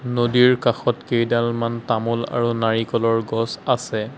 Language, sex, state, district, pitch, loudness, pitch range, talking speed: Assamese, male, Assam, Sonitpur, 115 Hz, -20 LUFS, 115-120 Hz, 115 wpm